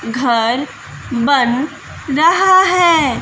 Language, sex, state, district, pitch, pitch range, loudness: Hindi, female, Bihar, West Champaran, 280 Hz, 245-335 Hz, -13 LUFS